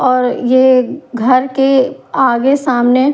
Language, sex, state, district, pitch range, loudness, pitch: Hindi, female, Punjab, Kapurthala, 250-270 Hz, -12 LUFS, 255 Hz